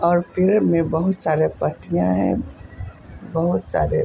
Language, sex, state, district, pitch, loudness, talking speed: Hindi, male, Uttar Pradesh, Budaun, 160 Hz, -20 LUFS, 150 wpm